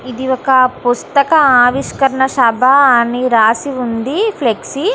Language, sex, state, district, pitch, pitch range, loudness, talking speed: Telugu, female, Andhra Pradesh, Guntur, 260 Hz, 245-275 Hz, -12 LUFS, 110 wpm